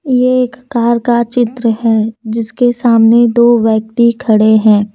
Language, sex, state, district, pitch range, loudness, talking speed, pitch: Hindi, female, Jharkhand, Deoghar, 220-245 Hz, -11 LUFS, 145 wpm, 235 Hz